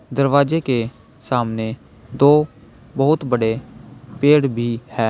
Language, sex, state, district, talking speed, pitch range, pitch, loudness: Hindi, male, Uttar Pradesh, Saharanpur, 105 wpm, 115-140 Hz, 125 Hz, -18 LUFS